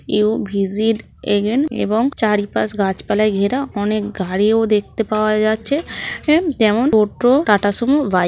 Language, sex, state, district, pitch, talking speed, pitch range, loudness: Bengali, female, West Bengal, Malda, 215 Hz, 130 wpm, 205-235 Hz, -17 LUFS